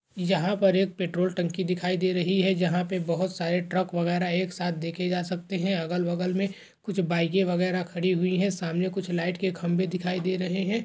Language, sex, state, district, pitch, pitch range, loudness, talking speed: Hindi, male, Uttar Pradesh, Jalaun, 180 Hz, 175-190 Hz, -27 LUFS, 210 wpm